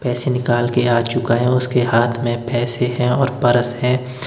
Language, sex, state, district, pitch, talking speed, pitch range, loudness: Hindi, male, Himachal Pradesh, Shimla, 125 Hz, 195 wpm, 120-125 Hz, -17 LUFS